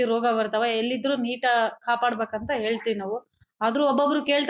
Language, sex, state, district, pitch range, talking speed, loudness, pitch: Kannada, female, Karnataka, Bellary, 225-255 Hz, 135 wpm, -24 LUFS, 235 Hz